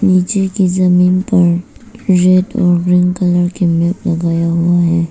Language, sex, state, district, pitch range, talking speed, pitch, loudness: Hindi, female, Arunachal Pradesh, Papum Pare, 175-185 Hz, 150 wpm, 180 Hz, -13 LUFS